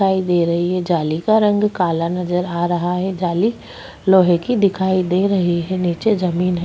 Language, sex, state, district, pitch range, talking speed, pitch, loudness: Hindi, female, Chhattisgarh, Bastar, 175-190 Hz, 200 wpm, 180 Hz, -18 LUFS